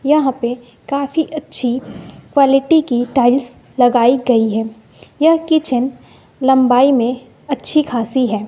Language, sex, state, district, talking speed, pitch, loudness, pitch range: Hindi, female, Bihar, West Champaran, 120 wpm, 255 Hz, -15 LUFS, 245-280 Hz